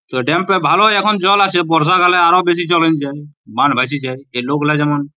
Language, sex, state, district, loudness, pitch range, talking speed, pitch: Bengali, male, West Bengal, Purulia, -13 LUFS, 145-180 Hz, 245 wpm, 160 Hz